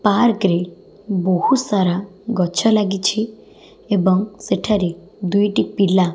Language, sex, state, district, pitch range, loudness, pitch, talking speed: Odia, female, Odisha, Khordha, 185-215 Hz, -18 LUFS, 195 Hz, 115 wpm